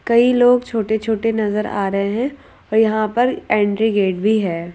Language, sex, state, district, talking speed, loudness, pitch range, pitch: Hindi, female, Madhya Pradesh, Bhopal, 190 wpm, -17 LUFS, 205-235 Hz, 220 Hz